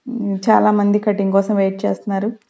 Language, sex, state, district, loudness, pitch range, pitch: Telugu, female, Andhra Pradesh, Sri Satya Sai, -17 LUFS, 195-215 Hz, 205 Hz